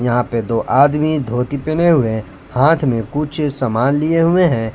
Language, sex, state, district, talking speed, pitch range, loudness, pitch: Hindi, male, Jharkhand, Palamu, 175 wpm, 115-155 Hz, -16 LUFS, 140 Hz